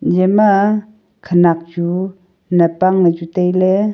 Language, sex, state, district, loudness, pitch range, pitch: Wancho, female, Arunachal Pradesh, Longding, -14 LUFS, 175-200 Hz, 185 Hz